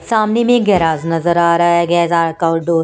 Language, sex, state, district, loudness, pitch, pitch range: Hindi, female, Punjab, Kapurthala, -14 LUFS, 170 Hz, 165-190 Hz